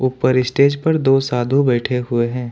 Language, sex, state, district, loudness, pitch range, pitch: Hindi, male, Jharkhand, Ranchi, -17 LUFS, 125-135 Hz, 130 Hz